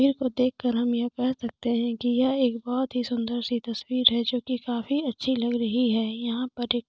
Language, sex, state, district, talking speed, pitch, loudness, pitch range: Hindi, female, Jharkhand, Sahebganj, 245 wpm, 245 Hz, -26 LUFS, 235-255 Hz